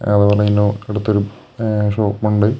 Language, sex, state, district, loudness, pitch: Malayalam, male, Kerala, Kasaragod, -17 LUFS, 105 Hz